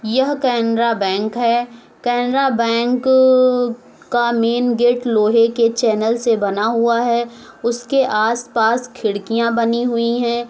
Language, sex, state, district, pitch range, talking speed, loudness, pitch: Hindi, female, Uttar Pradesh, Muzaffarnagar, 230-245 Hz, 125 wpm, -17 LUFS, 235 Hz